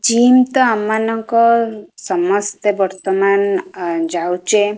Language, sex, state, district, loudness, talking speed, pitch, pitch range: Odia, female, Odisha, Khordha, -15 LUFS, 100 wpm, 210 Hz, 195-230 Hz